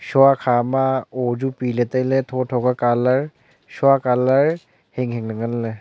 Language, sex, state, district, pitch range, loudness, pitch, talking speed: Wancho, male, Arunachal Pradesh, Longding, 120-135 Hz, -19 LUFS, 130 Hz, 165 wpm